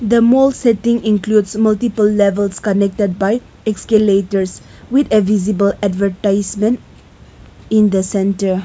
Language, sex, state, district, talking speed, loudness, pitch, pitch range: English, female, Nagaland, Kohima, 110 wpm, -15 LUFS, 210 Hz, 200-220 Hz